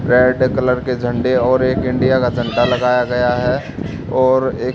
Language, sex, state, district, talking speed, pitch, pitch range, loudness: Hindi, male, Haryana, Charkhi Dadri, 175 wpm, 125 Hz, 125-130 Hz, -16 LUFS